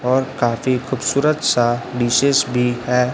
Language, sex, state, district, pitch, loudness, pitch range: Hindi, male, Chhattisgarh, Raipur, 125 Hz, -18 LUFS, 120-135 Hz